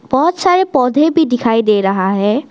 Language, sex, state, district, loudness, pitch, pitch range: Hindi, female, Arunachal Pradesh, Lower Dibang Valley, -13 LUFS, 260 Hz, 215-320 Hz